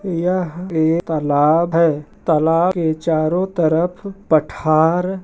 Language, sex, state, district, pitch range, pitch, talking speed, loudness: Hindi, male, Bihar, Madhepura, 160-180 Hz, 165 Hz, 105 wpm, -17 LUFS